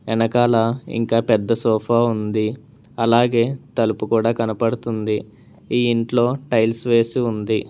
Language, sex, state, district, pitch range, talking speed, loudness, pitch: Telugu, male, Telangana, Hyderabad, 110-120 Hz, 110 wpm, -19 LUFS, 115 Hz